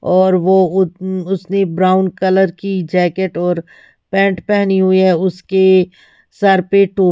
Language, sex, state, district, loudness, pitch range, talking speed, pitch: Hindi, female, Haryana, Rohtak, -14 LUFS, 185-195 Hz, 145 wpm, 190 Hz